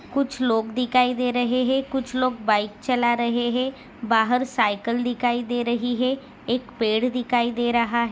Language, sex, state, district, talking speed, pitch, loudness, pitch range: Hindi, female, Maharashtra, Dhule, 170 wpm, 245 Hz, -23 LUFS, 235-250 Hz